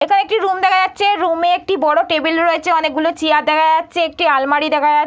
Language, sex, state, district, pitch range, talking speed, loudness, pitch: Bengali, female, West Bengal, Paschim Medinipur, 310-365 Hz, 250 wpm, -15 LUFS, 330 Hz